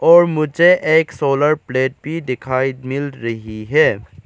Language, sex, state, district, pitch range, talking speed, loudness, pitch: Hindi, male, Arunachal Pradesh, Lower Dibang Valley, 130-155 Hz, 140 wpm, -16 LUFS, 140 Hz